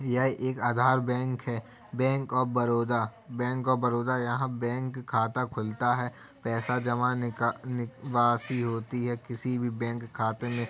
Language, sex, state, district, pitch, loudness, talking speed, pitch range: Hindi, female, Uttar Pradesh, Jalaun, 120 Hz, -29 LUFS, 150 wpm, 120-125 Hz